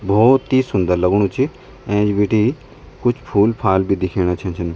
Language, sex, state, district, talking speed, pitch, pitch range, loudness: Garhwali, male, Uttarakhand, Tehri Garhwal, 175 wpm, 105 Hz, 95-125 Hz, -17 LUFS